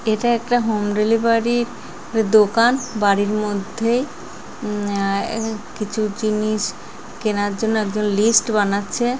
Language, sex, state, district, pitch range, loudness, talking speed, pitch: Bengali, female, West Bengal, Jalpaiguri, 210-230 Hz, -19 LUFS, 100 wpm, 215 Hz